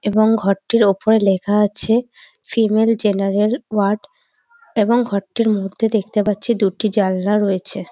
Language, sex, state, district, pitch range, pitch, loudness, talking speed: Bengali, female, West Bengal, Dakshin Dinajpur, 200-225 Hz, 210 Hz, -17 LUFS, 120 wpm